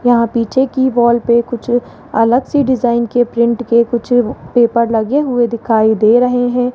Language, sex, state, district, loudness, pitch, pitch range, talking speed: Hindi, female, Rajasthan, Jaipur, -13 LUFS, 240 Hz, 235-245 Hz, 180 wpm